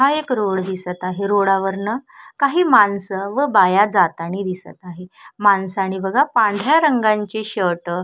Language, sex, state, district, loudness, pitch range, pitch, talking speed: Marathi, female, Maharashtra, Solapur, -18 LUFS, 190-225 Hz, 200 Hz, 150 wpm